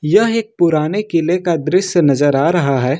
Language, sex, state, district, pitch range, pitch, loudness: Hindi, male, Jharkhand, Ranchi, 150-185 Hz, 170 Hz, -15 LUFS